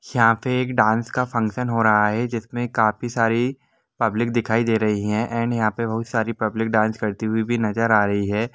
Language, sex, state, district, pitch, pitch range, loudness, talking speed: Hindi, male, Jharkhand, Jamtara, 115 Hz, 110-120 Hz, -21 LUFS, 210 wpm